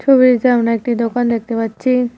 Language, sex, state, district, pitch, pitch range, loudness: Bengali, female, West Bengal, Cooch Behar, 240 Hz, 230-250 Hz, -15 LUFS